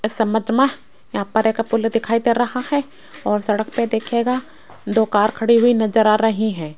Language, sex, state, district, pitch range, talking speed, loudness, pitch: Hindi, female, Rajasthan, Jaipur, 215-240 Hz, 205 wpm, -18 LUFS, 225 Hz